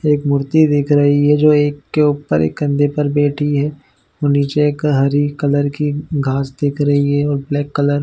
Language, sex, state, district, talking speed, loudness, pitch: Hindi, male, Chhattisgarh, Bilaspur, 200 wpm, -16 LUFS, 145 Hz